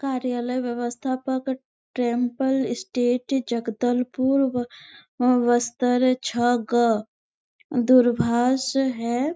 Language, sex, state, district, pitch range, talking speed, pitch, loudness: Hindi, female, Chhattisgarh, Bastar, 240-260 Hz, 70 wpm, 245 Hz, -23 LUFS